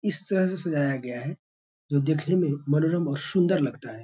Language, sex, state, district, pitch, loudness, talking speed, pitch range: Hindi, male, Bihar, Bhagalpur, 155 Hz, -26 LUFS, 210 wpm, 140-180 Hz